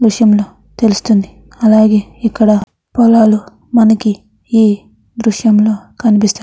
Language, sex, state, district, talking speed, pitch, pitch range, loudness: Telugu, female, Andhra Pradesh, Chittoor, 120 wpm, 215 Hz, 210-225 Hz, -12 LUFS